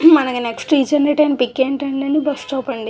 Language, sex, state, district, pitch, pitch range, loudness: Telugu, female, Andhra Pradesh, Visakhapatnam, 275 Hz, 265-295 Hz, -17 LUFS